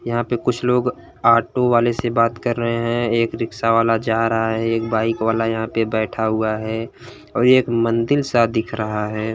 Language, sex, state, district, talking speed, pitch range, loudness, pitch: Hindi, male, Uttar Pradesh, Gorakhpur, 210 wpm, 110-120 Hz, -19 LUFS, 115 Hz